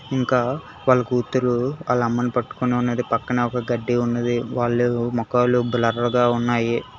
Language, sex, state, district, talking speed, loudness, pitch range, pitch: Telugu, male, Telangana, Hyderabad, 135 wpm, -21 LUFS, 120-125 Hz, 120 Hz